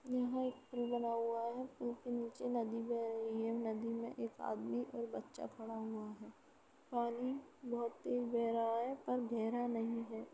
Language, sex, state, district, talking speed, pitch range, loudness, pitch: Hindi, female, Uttar Pradesh, Etah, 195 wpm, 230-245 Hz, -41 LUFS, 235 Hz